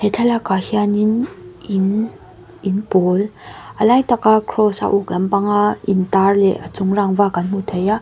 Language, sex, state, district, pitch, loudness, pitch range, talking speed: Mizo, female, Mizoram, Aizawl, 205 Hz, -17 LUFS, 195-215 Hz, 180 wpm